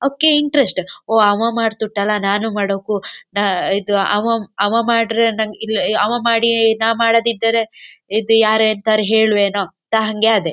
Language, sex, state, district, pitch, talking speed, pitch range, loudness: Kannada, female, Karnataka, Dakshina Kannada, 220 Hz, 150 wpm, 205-230 Hz, -16 LUFS